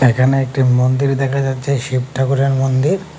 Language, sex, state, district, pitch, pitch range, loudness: Bengali, male, Tripura, West Tripura, 135 Hz, 130-135 Hz, -16 LUFS